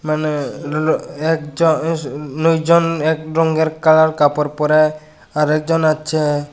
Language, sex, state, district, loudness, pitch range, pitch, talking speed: Bengali, male, Tripura, West Tripura, -16 LUFS, 150-160 Hz, 155 Hz, 110 wpm